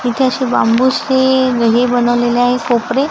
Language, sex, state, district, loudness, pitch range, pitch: Marathi, female, Maharashtra, Gondia, -13 LUFS, 240-260 Hz, 250 Hz